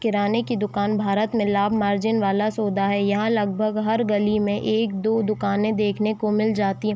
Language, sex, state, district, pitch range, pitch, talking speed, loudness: Hindi, female, Chhattisgarh, Raigarh, 205-220 Hz, 210 Hz, 190 wpm, -22 LUFS